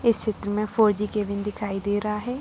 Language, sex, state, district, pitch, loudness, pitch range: Hindi, female, Bihar, Saran, 210 Hz, -25 LUFS, 205-215 Hz